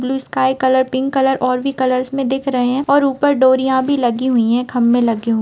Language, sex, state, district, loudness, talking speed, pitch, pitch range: Hindi, female, Bihar, Madhepura, -16 LUFS, 255 wpm, 260 Hz, 250-270 Hz